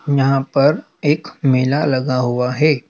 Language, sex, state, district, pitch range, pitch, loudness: Hindi, male, Madhya Pradesh, Dhar, 130-150 Hz, 135 Hz, -17 LUFS